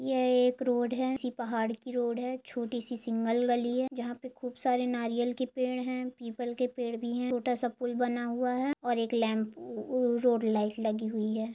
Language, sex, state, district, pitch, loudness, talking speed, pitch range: Hindi, female, Andhra Pradesh, Chittoor, 245 Hz, -31 LUFS, 210 wpm, 235-250 Hz